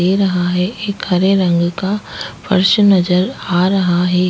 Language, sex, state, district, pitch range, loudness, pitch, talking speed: Hindi, female, Chhattisgarh, Kabirdham, 180-195 Hz, -15 LUFS, 185 Hz, 170 wpm